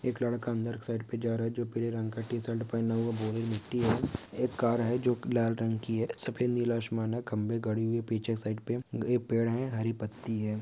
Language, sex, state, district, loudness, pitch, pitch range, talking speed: Hindi, male, Uttar Pradesh, Gorakhpur, -32 LUFS, 115 Hz, 115-120 Hz, 260 wpm